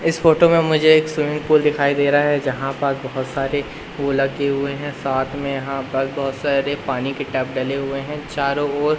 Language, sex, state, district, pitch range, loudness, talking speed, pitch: Hindi, male, Madhya Pradesh, Katni, 135-150 Hz, -19 LUFS, 225 wpm, 140 Hz